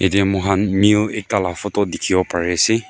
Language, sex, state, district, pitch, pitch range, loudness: Nagamese, male, Nagaland, Kohima, 100 Hz, 95-105 Hz, -18 LUFS